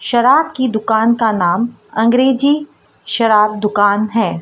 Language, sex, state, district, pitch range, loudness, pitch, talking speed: Hindi, female, Madhya Pradesh, Dhar, 210-255 Hz, -14 LUFS, 225 Hz, 120 wpm